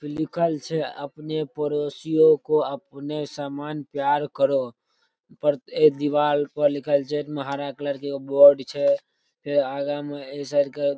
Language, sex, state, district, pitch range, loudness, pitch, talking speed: Maithili, male, Bihar, Darbhanga, 140-150 Hz, -23 LUFS, 145 Hz, 150 wpm